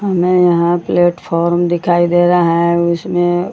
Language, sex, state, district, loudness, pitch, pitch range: Hindi, female, Bihar, Jahanabad, -13 LUFS, 175 Hz, 170-175 Hz